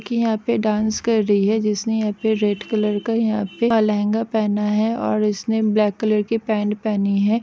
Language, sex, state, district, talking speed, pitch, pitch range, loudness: Hindi, female, Andhra Pradesh, Guntur, 210 wpm, 215 Hz, 210-225 Hz, -20 LUFS